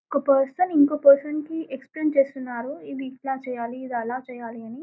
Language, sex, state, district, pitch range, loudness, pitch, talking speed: Telugu, female, Telangana, Karimnagar, 250-290 Hz, -23 LUFS, 270 Hz, 175 wpm